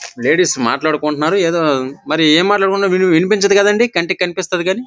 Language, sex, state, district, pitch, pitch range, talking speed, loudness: Telugu, male, Andhra Pradesh, Visakhapatnam, 180 Hz, 155-195 Hz, 150 wpm, -14 LUFS